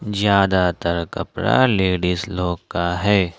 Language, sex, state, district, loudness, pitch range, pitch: Hindi, male, Jharkhand, Ranchi, -19 LUFS, 85-100 Hz, 90 Hz